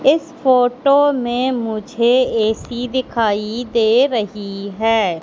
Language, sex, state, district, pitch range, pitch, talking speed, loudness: Hindi, female, Madhya Pradesh, Katni, 220-260 Hz, 240 Hz, 105 wpm, -17 LUFS